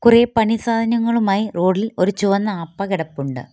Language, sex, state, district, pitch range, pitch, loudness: Malayalam, female, Kerala, Kollam, 185-230 Hz, 205 Hz, -18 LUFS